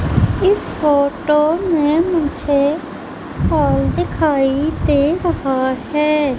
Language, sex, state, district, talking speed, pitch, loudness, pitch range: Hindi, female, Madhya Pradesh, Umaria, 85 wpm, 300 Hz, -16 LUFS, 280-315 Hz